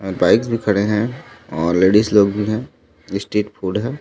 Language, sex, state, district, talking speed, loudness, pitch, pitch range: Chhattisgarhi, male, Chhattisgarh, Raigarh, 210 wpm, -18 LUFS, 105 Hz, 100-110 Hz